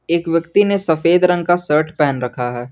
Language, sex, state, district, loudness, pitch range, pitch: Hindi, male, Jharkhand, Garhwa, -16 LUFS, 145-175 Hz, 165 Hz